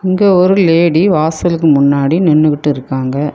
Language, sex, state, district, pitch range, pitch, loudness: Tamil, female, Tamil Nadu, Kanyakumari, 145-180 Hz, 160 Hz, -11 LUFS